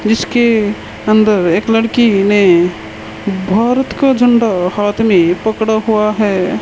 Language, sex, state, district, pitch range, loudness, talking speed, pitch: Hindi, male, Rajasthan, Bikaner, 190-225 Hz, -12 LUFS, 120 wpm, 215 Hz